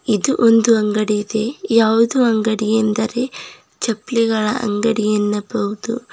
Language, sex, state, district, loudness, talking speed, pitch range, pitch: Kannada, female, Karnataka, Bidar, -17 LUFS, 100 wpm, 215-230 Hz, 220 Hz